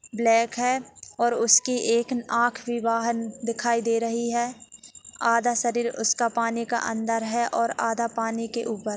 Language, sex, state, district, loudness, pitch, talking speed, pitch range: Hindi, female, Uttarakhand, Tehri Garhwal, -24 LUFS, 235 Hz, 160 wpm, 230-235 Hz